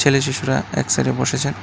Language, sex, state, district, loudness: Bengali, male, Tripura, West Tripura, -19 LUFS